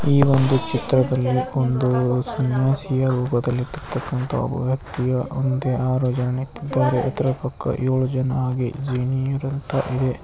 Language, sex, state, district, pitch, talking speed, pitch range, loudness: Kannada, male, Karnataka, Belgaum, 130 Hz, 90 wpm, 125-135 Hz, -22 LUFS